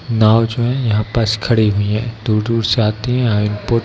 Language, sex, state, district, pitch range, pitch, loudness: Hindi, male, Bihar, Darbhanga, 105-115 Hz, 110 Hz, -16 LUFS